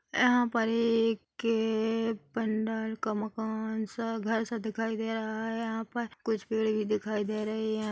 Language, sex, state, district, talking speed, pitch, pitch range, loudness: Hindi, female, Chhattisgarh, Bilaspur, 180 wpm, 220 Hz, 220-225 Hz, -31 LUFS